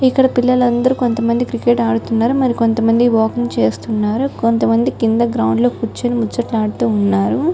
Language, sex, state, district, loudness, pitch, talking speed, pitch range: Telugu, female, Telangana, Nalgonda, -15 LUFS, 230 Hz, 135 wpm, 220-245 Hz